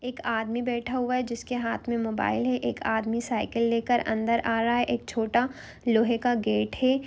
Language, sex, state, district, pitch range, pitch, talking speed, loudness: Hindi, female, Jharkhand, Jamtara, 225-245 Hz, 235 Hz, 205 wpm, -27 LUFS